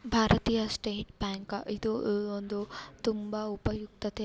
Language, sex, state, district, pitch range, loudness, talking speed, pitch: Kannada, female, Karnataka, Bellary, 205-220 Hz, -32 LUFS, 155 wpm, 215 Hz